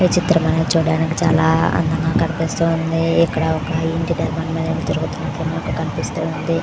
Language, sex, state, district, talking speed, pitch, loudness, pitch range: Telugu, female, Andhra Pradesh, Visakhapatnam, 135 wpm, 160 Hz, -18 LUFS, 160-165 Hz